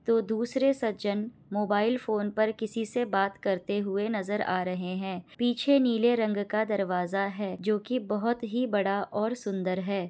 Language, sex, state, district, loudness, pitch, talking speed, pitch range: Hindi, female, Bihar, Kishanganj, -29 LUFS, 210 Hz, 165 wpm, 195-230 Hz